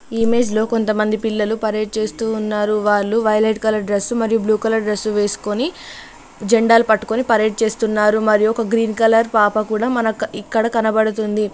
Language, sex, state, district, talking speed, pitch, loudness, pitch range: Telugu, female, Telangana, Mahabubabad, 155 wpm, 220 Hz, -17 LUFS, 215-225 Hz